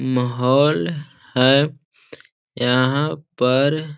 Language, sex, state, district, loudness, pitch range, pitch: Hindi, male, Bihar, Gaya, -19 LUFS, 130-150 Hz, 140 Hz